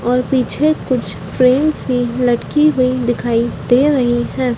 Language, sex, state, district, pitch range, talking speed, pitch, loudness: Hindi, female, Madhya Pradesh, Dhar, 240-270 Hz, 145 wpm, 250 Hz, -15 LUFS